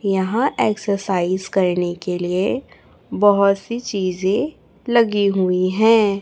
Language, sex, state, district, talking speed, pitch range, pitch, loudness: Hindi, female, Chhattisgarh, Raipur, 105 wpm, 185-215 Hz, 195 Hz, -19 LUFS